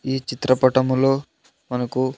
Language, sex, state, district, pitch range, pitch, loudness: Telugu, male, Andhra Pradesh, Sri Satya Sai, 130-135 Hz, 130 Hz, -20 LUFS